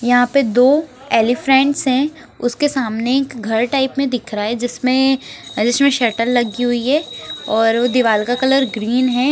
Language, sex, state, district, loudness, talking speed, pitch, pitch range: Hindi, female, Bihar, Begusarai, -16 LUFS, 175 wpm, 250 Hz, 235-270 Hz